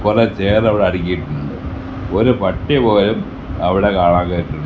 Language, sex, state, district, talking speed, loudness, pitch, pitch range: Malayalam, male, Kerala, Kasaragod, 130 wpm, -16 LUFS, 90 Hz, 85-100 Hz